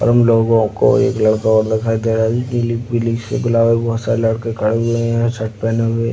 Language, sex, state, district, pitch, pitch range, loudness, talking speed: Hindi, male, Uttar Pradesh, Deoria, 115 Hz, 110-115 Hz, -16 LUFS, 245 wpm